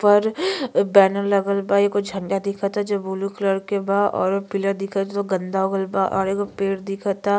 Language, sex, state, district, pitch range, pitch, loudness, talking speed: Bhojpuri, female, Uttar Pradesh, Gorakhpur, 195-200 Hz, 195 Hz, -21 LUFS, 220 wpm